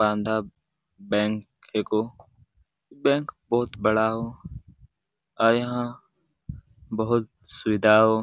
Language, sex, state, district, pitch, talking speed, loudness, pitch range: Hindi, male, Bihar, Jamui, 110 Hz, 85 wpm, -25 LUFS, 105-120 Hz